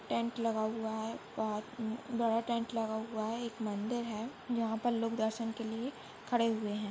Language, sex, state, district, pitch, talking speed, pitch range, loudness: Hindi, female, Goa, North and South Goa, 225 Hz, 180 wpm, 220-235 Hz, -36 LUFS